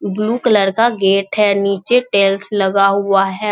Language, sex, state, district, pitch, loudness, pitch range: Hindi, male, Bihar, Jamui, 200 Hz, -14 LUFS, 195-210 Hz